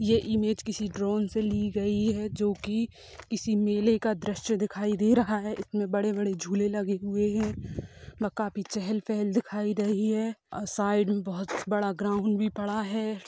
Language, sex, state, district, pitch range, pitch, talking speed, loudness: Hindi, female, Bihar, Sitamarhi, 205-215 Hz, 210 Hz, 195 wpm, -29 LUFS